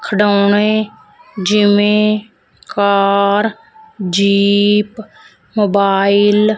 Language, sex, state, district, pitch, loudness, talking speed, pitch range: Punjabi, female, Punjab, Fazilka, 205 Hz, -13 LUFS, 55 wpm, 200-215 Hz